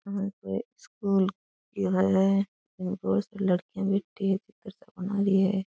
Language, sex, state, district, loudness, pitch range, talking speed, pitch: Rajasthani, female, Rajasthan, Churu, -28 LUFS, 190-200 Hz, 165 wpm, 195 Hz